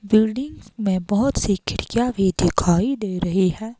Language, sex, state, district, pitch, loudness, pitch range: Hindi, female, Himachal Pradesh, Shimla, 200 Hz, -21 LUFS, 185-220 Hz